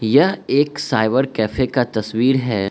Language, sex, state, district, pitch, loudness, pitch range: Hindi, male, Arunachal Pradesh, Lower Dibang Valley, 125 Hz, -18 LUFS, 110-135 Hz